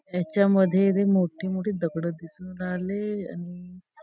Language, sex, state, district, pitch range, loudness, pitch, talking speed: Marathi, female, Maharashtra, Nagpur, 180-195 Hz, -25 LUFS, 185 Hz, 135 wpm